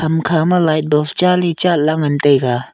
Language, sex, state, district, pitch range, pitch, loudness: Wancho, male, Arunachal Pradesh, Longding, 150-175 Hz, 155 Hz, -14 LUFS